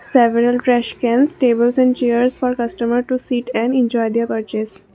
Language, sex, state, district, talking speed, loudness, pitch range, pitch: English, female, Assam, Kamrup Metropolitan, 170 wpm, -17 LUFS, 235-250 Hz, 240 Hz